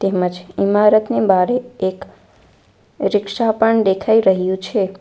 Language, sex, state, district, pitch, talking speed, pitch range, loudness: Gujarati, female, Gujarat, Valsad, 200 Hz, 110 wpm, 190-220 Hz, -16 LUFS